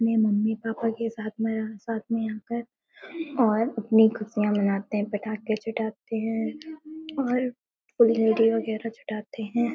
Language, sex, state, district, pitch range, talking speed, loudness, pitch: Hindi, female, Uttar Pradesh, Hamirpur, 220-235 Hz, 130 wpm, -26 LUFS, 225 Hz